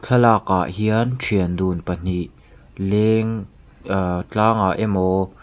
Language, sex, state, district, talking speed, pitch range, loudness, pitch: Mizo, male, Mizoram, Aizawl, 120 wpm, 90-110 Hz, -20 LUFS, 95 Hz